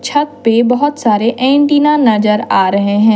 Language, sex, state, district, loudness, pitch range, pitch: Hindi, female, Jharkhand, Deoghar, -12 LUFS, 210-290 Hz, 235 Hz